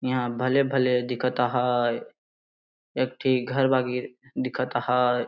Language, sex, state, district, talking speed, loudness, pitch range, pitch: Sadri, male, Chhattisgarh, Jashpur, 100 wpm, -25 LUFS, 125-130 Hz, 125 Hz